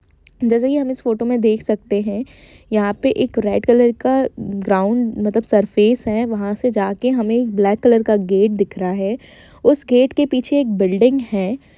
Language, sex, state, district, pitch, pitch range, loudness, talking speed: Hindi, female, Jharkhand, Jamtara, 225 Hz, 205-245 Hz, -17 LUFS, 195 wpm